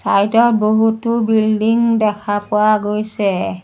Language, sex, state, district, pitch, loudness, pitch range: Assamese, female, Assam, Sonitpur, 215 Hz, -15 LUFS, 205-225 Hz